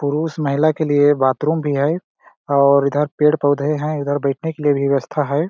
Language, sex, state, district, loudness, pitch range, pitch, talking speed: Hindi, male, Chhattisgarh, Balrampur, -18 LUFS, 140-155 Hz, 145 Hz, 205 wpm